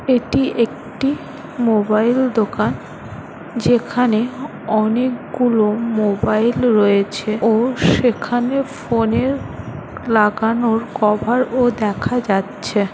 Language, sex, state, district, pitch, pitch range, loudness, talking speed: Bengali, female, West Bengal, Malda, 230 Hz, 215-245 Hz, -17 LUFS, 70 wpm